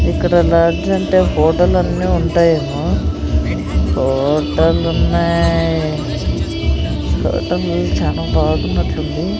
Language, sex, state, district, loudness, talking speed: Telugu, female, Andhra Pradesh, Sri Satya Sai, -16 LUFS, 65 wpm